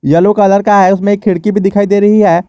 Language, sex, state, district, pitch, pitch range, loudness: Hindi, male, Jharkhand, Garhwa, 200 Hz, 195-205 Hz, -9 LUFS